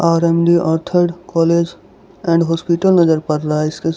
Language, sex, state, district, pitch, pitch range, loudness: Hindi, male, Gujarat, Valsad, 170 Hz, 165-170 Hz, -15 LUFS